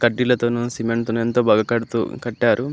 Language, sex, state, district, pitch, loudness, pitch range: Telugu, male, Andhra Pradesh, Anantapur, 120 Hz, -20 LUFS, 115-120 Hz